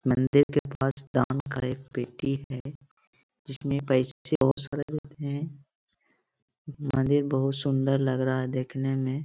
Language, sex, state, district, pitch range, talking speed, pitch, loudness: Hindi, male, Bihar, Gaya, 130-145 Hz, 150 wpm, 135 Hz, -28 LUFS